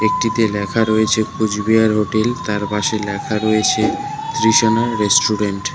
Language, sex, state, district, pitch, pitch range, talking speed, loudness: Bengali, male, West Bengal, Cooch Behar, 110 Hz, 105-115 Hz, 125 wpm, -17 LUFS